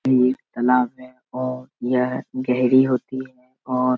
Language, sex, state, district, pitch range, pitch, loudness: Hindi, male, Bihar, Darbhanga, 125-130 Hz, 125 Hz, -21 LUFS